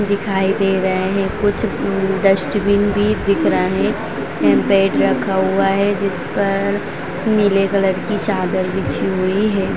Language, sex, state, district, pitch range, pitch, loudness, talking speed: Hindi, female, Bihar, Vaishali, 190-200 Hz, 195 Hz, -17 LUFS, 145 wpm